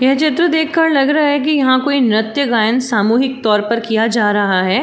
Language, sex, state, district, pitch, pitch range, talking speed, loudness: Hindi, female, Uttar Pradesh, Varanasi, 255 Hz, 220-285 Hz, 210 wpm, -14 LUFS